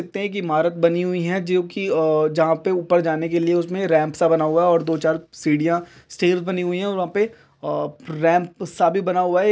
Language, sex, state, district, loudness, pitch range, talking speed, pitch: Hindi, male, Uttar Pradesh, Jalaun, -20 LUFS, 160-185 Hz, 250 wpm, 175 Hz